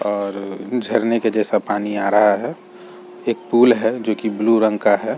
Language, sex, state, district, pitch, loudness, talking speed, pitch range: Hindi, male, Chhattisgarh, Rajnandgaon, 110 Hz, -18 LUFS, 195 wpm, 105-120 Hz